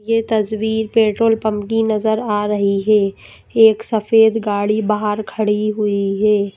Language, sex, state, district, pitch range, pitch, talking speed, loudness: Hindi, female, Madhya Pradesh, Bhopal, 210-220 Hz, 215 Hz, 145 wpm, -17 LUFS